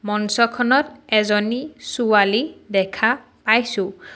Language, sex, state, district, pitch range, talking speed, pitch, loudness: Assamese, female, Assam, Sonitpur, 210-245 Hz, 70 wpm, 220 Hz, -19 LUFS